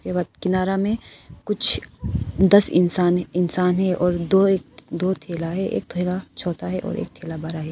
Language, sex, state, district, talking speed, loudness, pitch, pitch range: Hindi, female, Arunachal Pradesh, Papum Pare, 145 wpm, -21 LUFS, 180 Hz, 175-190 Hz